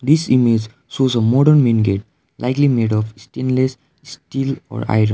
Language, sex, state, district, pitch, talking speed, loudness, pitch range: English, male, Sikkim, Gangtok, 125 Hz, 175 wpm, -17 LUFS, 110-135 Hz